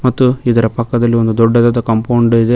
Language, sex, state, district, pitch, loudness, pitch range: Kannada, male, Karnataka, Koppal, 120 Hz, -12 LUFS, 115-120 Hz